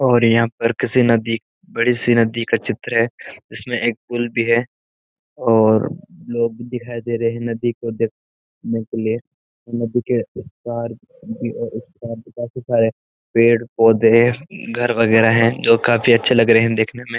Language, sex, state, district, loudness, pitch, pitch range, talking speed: Hindi, male, Uttarakhand, Uttarkashi, -18 LUFS, 115 Hz, 115-120 Hz, 185 wpm